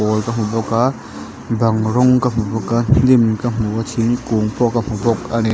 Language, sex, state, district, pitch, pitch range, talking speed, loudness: Mizo, male, Mizoram, Aizawl, 115 Hz, 110-120 Hz, 240 wpm, -17 LUFS